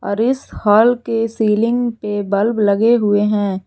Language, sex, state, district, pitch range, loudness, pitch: Hindi, female, Jharkhand, Garhwa, 205-235 Hz, -16 LUFS, 215 Hz